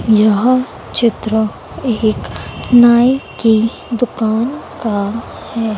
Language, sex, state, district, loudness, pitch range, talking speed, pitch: Hindi, female, Madhya Pradesh, Dhar, -15 LUFS, 220-240 Hz, 85 wpm, 225 Hz